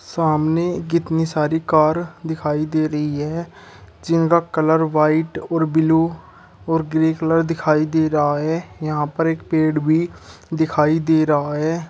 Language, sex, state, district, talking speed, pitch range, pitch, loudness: Hindi, male, Uttar Pradesh, Shamli, 145 wpm, 155-165 Hz, 160 Hz, -19 LUFS